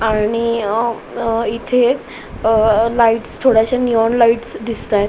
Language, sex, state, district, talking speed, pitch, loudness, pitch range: Marathi, female, Maharashtra, Solapur, 105 wpm, 230 Hz, -16 LUFS, 220-235 Hz